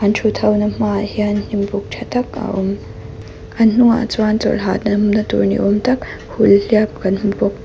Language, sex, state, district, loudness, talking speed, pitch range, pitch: Mizo, female, Mizoram, Aizawl, -16 LUFS, 195 wpm, 200-220 Hz, 210 Hz